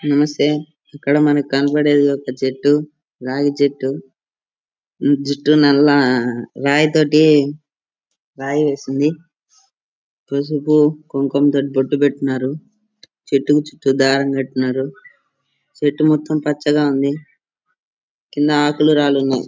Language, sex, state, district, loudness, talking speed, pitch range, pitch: Telugu, male, Andhra Pradesh, Anantapur, -16 LUFS, 100 wpm, 140-150 Hz, 145 Hz